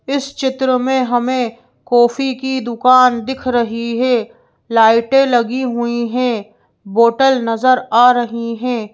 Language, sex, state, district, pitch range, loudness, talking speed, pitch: Hindi, female, Madhya Pradesh, Bhopal, 235-255 Hz, -15 LUFS, 130 wpm, 245 Hz